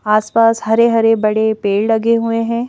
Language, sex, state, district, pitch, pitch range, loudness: Hindi, female, Madhya Pradesh, Bhopal, 225 Hz, 215-230 Hz, -14 LUFS